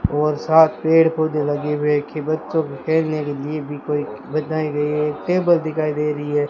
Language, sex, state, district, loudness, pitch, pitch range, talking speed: Hindi, male, Rajasthan, Bikaner, -20 LUFS, 150 Hz, 150-155 Hz, 220 wpm